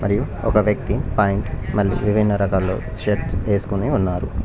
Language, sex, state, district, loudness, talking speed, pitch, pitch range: Telugu, male, Telangana, Mahabubabad, -20 LUFS, 135 wpm, 100 Hz, 95-105 Hz